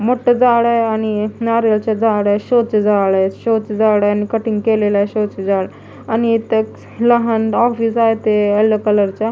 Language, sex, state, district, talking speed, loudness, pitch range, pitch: Marathi, female, Maharashtra, Mumbai Suburban, 210 wpm, -15 LUFS, 210-230 Hz, 220 Hz